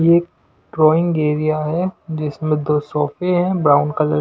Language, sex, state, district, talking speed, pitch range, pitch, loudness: Hindi, male, Punjab, Pathankot, 130 wpm, 150-170 Hz, 155 Hz, -18 LUFS